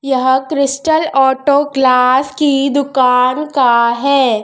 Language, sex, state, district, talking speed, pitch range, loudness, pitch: Hindi, male, Madhya Pradesh, Dhar, 110 wpm, 255-280 Hz, -12 LUFS, 270 Hz